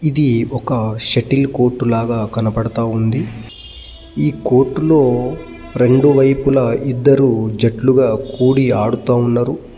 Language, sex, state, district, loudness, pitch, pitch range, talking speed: Telugu, male, Telangana, Mahabubabad, -15 LUFS, 120 Hz, 110-135 Hz, 110 wpm